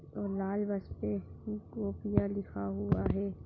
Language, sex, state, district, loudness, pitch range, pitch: Hindi, female, Chhattisgarh, Bilaspur, -35 LUFS, 100-105 Hz, 100 Hz